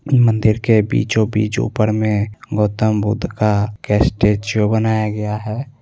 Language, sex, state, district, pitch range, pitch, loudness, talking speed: Hindi, male, Bihar, Begusarai, 105-110 Hz, 110 Hz, -17 LUFS, 125 wpm